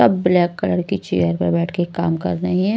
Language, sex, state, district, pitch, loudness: Hindi, female, Maharashtra, Washim, 170 Hz, -19 LUFS